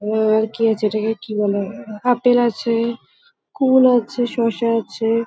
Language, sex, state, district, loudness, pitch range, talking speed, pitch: Bengali, female, West Bengal, Kolkata, -18 LUFS, 215-245 Hz, 160 wpm, 230 Hz